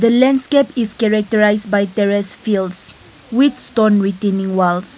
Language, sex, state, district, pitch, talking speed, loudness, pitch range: English, female, Nagaland, Kohima, 210 Hz, 145 wpm, -16 LUFS, 200-235 Hz